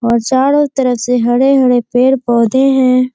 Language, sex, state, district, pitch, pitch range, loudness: Hindi, female, Bihar, Kishanganj, 255 Hz, 240-265 Hz, -11 LUFS